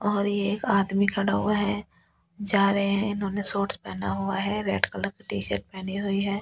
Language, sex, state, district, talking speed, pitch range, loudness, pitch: Hindi, female, Delhi, New Delhi, 225 wpm, 195-205 Hz, -26 LUFS, 200 Hz